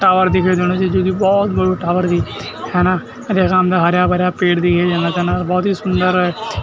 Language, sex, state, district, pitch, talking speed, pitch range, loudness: Garhwali, male, Uttarakhand, Tehri Garhwal, 185 Hz, 215 wpm, 180-185 Hz, -15 LUFS